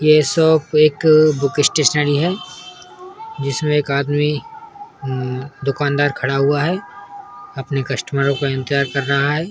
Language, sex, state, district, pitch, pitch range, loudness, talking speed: Hindi, male, Uttar Pradesh, Muzaffarnagar, 150 Hz, 140-170 Hz, -17 LUFS, 140 wpm